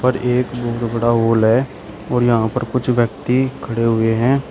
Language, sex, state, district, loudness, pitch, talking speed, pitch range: Hindi, male, Uttar Pradesh, Shamli, -17 LUFS, 120 Hz, 185 wpm, 115-125 Hz